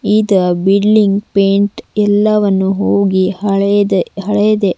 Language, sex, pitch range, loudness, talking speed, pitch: Kannada, female, 195-210 Hz, -13 LUFS, 90 wpm, 200 Hz